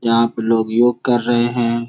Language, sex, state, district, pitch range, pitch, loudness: Hindi, male, Bihar, Gopalganj, 115-120 Hz, 120 Hz, -16 LUFS